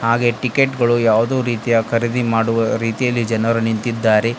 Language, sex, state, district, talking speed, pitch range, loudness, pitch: Kannada, male, Karnataka, Bidar, 135 wpm, 115-120 Hz, -17 LUFS, 115 Hz